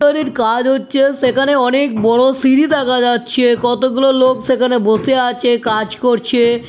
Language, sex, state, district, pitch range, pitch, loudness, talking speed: Bengali, female, West Bengal, North 24 Parganas, 240-265 Hz, 250 Hz, -14 LUFS, 145 wpm